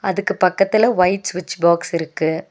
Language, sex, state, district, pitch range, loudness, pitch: Tamil, female, Tamil Nadu, Nilgiris, 170-195 Hz, -18 LUFS, 185 Hz